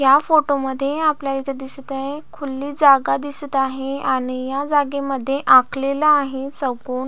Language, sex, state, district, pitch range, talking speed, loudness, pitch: Marathi, female, Maharashtra, Solapur, 265-285 Hz, 150 wpm, -19 LUFS, 275 Hz